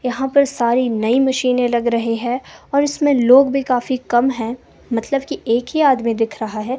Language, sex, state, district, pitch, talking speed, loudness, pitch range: Hindi, female, Himachal Pradesh, Shimla, 250 Hz, 205 wpm, -17 LUFS, 235-270 Hz